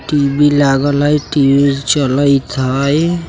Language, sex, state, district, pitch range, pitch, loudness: Bajjika, male, Bihar, Vaishali, 135-145 Hz, 140 Hz, -13 LUFS